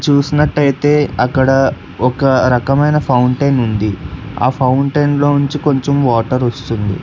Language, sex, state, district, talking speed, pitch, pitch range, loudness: Telugu, male, Telangana, Hyderabad, 110 wpm, 135 Hz, 125-145 Hz, -14 LUFS